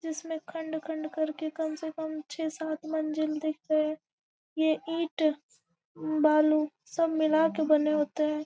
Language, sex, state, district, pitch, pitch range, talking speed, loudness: Hindi, female, Bihar, Gopalganj, 310 Hz, 305-320 Hz, 140 wpm, -29 LUFS